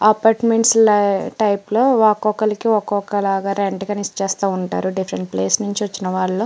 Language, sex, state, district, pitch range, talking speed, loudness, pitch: Telugu, female, Andhra Pradesh, Srikakulam, 195-215 Hz, 160 wpm, -18 LUFS, 205 Hz